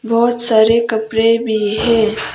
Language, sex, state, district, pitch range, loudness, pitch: Hindi, female, Arunachal Pradesh, Papum Pare, 220-230 Hz, -14 LUFS, 225 Hz